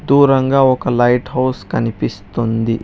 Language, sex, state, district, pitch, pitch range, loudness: Telugu, male, Telangana, Hyderabad, 125 Hz, 115-135 Hz, -15 LUFS